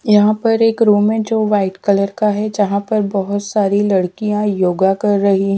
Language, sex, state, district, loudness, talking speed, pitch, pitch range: Hindi, female, Punjab, Pathankot, -15 LUFS, 205 wpm, 205 Hz, 195-215 Hz